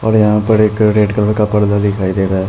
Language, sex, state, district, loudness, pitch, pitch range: Hindi, male, Bihar, Muzaffarpur, -13 LUFS, 105 Hz, 100-105 Hz